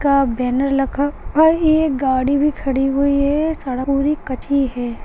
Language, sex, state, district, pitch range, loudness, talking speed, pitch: Hindi, female, Bihar, Begusarai, 265-290 Hz, -18 LUFS, 190 wpm, 275 Hz